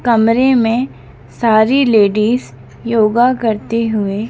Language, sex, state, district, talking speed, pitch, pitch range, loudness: Hindi, female, Madhya Pradesh, Dhar, 95 wpm, 225 Hz, 215-240 Hz, -13 LUFS